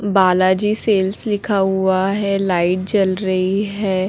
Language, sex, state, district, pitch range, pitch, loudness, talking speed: Hindi, female, Chhattisgarh, Korba, 185-200 Hz, 195 Hz, -17 LUFS, 130 wpm